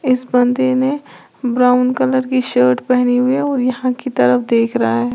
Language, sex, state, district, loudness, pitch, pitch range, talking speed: Hindi, female, Uttar Pradesh, Lalitpur, -15 LUFS, 250 Hz, 240-260 Hz, 200 wpm